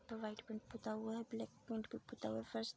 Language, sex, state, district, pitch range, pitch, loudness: Hindi, female, Bihar, Darbhanga, 215-230 Hz, 220 Hz, -47 LUFS